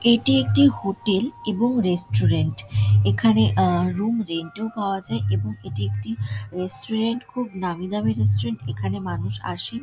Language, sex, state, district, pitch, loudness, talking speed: Bengali, female, West Bengal, Dakshin Dinajpur, 130 Hz, -23 LUFS, 170 wpm